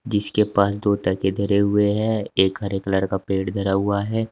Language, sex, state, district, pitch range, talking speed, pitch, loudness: Hindi, male, Uttar Pradesh, Saharanpur, 95-105 Hz, 210 wpm, 100 Hz, -21 LUFS